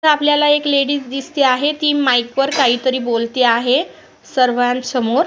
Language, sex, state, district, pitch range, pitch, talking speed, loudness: Marathi, female, Maharashtra, Sindhudurg, 250-290 Hz, 265 Hz, 125 wpm, -16 LUFS